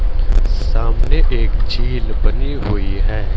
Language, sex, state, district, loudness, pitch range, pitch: Hindi, male, Haryana, Charkhi Dadri, -20 LUFS, 80-100 Hz, 95 Hz